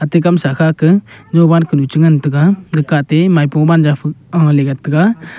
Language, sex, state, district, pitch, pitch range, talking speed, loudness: Wancho, male, Arunachal Pradesh, Longding, 160 Hz, 150-170 Hz, 155 wpm, -12 LUFS